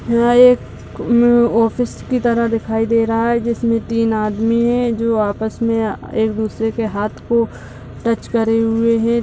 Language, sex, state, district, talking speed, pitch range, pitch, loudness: Hindi, male, Bihar, Purnia, 175 wpm, 220-235 Hz, 230 Hz, -16 LUFS